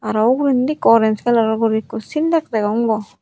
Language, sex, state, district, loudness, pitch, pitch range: Chakma, female, Tripura, Unakoti, -17 LUFS, 225 Hz, 220-260 Hz